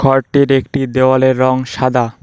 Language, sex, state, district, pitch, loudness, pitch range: Bengali, male, West Bengal, Cooch Behar, 130 Hz, -13 LUFS, 130-135 Hz